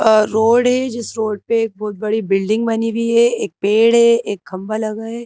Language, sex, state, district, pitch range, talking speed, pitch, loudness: Hindi, female, Madhya Pradesh, Bhopal, 215-235 Hz, 230 wpm, 220 Hz, -16 LUFS